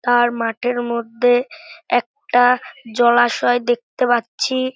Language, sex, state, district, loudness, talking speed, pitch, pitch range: Bengali, male, West Bengal, North 24 Parganas, -18 LUFS, 100 wpm, 245 Hz, 240-250 Hz